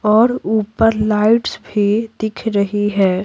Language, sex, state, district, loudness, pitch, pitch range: Hindi, female, Bihar, Patna, -16 LUFS, 215 Hz, 205-225 Hz